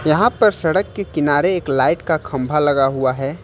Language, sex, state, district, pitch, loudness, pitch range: Hindi, male, Uttar Pradesh, Lucknow, 150 Hz, -17 LUFS, 135-180 Hz